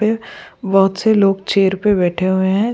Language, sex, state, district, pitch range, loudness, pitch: Hindi, female, Goa, North and South Goa, 190-215 Hz, -15 LUFS, 195 Hz